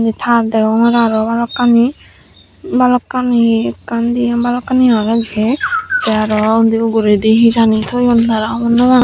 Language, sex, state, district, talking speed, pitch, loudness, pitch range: Chakma, female, Tripura, Dhalai, 120 wpm, 230 Hz, -13 LUFS, 220-245 Hz